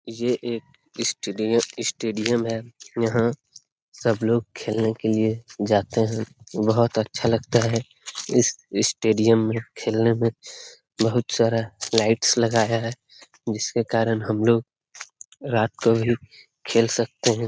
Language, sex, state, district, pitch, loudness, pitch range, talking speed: Hindi, male, Bihar, Lakhisarai, 115 Hz, -23 LUFS, 110-115 Hz, 125 wpm